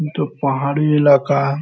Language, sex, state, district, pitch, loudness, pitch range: Hindi, male, Bihar, Araria, 145 Hz, -16 LUFS, 140-150 Hz